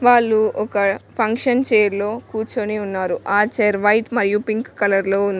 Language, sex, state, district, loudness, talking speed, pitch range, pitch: Telugu, female, Telangana, Mahabubabad, -19 LUFS, 155 wpm, 200-225 Hz, 210 Hz